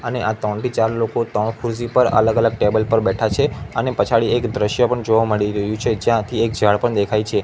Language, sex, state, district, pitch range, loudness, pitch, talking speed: Gujarati, male, Gujarat, Gandhinagar, 105-120 Hz, -18 LUFS, 115 Hz, 235 wpm